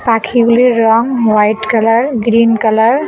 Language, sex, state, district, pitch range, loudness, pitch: Bengali, female, West Bengal, Cooch Behar, 225-240 Hz, -11 LUFS, 230 Hz